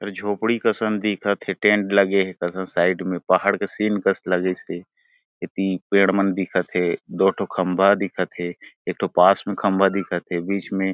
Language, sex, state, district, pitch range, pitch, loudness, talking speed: Chhattisgarhi, male, Chhattisgarh, Jashpur, 95-105 Hz, 100 Hz, -21 LUFS, 195 wpm